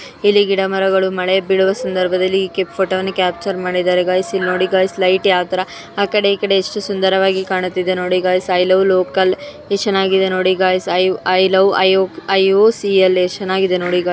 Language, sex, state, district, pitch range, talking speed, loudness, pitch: Kannada, female, Karnataka, Dharwad, 185-195 Hz, 170 wpm, -15 LUFS, 190 Hz